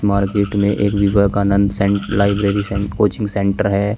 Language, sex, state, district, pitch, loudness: Hindi, male, Uttar Pradesh, Shamli, 100 Hz, -17 LUFS